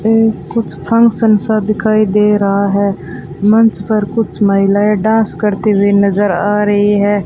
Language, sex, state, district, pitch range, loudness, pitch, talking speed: Hindi, female, Rajasthan, Bikaner, 200-215 Hz, -12 LUFS, 205 Hz, 155 wpm